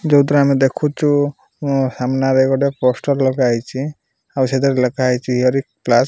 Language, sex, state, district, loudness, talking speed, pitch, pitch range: Odia, male, Odisha, Malkangiri, -17 LUFS, 150 wpm, 135 Hz, 125-140 Hz